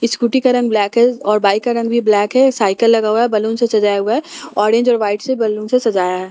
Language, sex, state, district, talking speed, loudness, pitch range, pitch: Hindi, female, Bihar, Katihar, 275 wpm, -15 LUFS, 210-240 Hz, 225 Hz